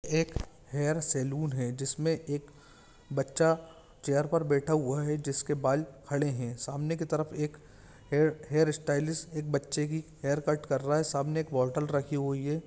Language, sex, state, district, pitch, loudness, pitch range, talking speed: Hindi, male, Jharkhand, Jamtara, 150 Hz, -31 LUFS, 140-155 Hz, 165 wpm